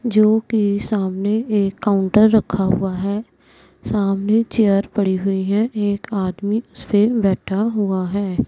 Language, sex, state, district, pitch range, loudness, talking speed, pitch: Hindi, female, Punjab, Pathankot, 195-215 Hz, -19 LUFS, 125 wpm, 205 Hz